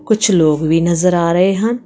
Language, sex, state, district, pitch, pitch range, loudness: Punjabi, female, Karnataka, Bangalore, 180 Hz, 170-210 Hz, -13 LUFS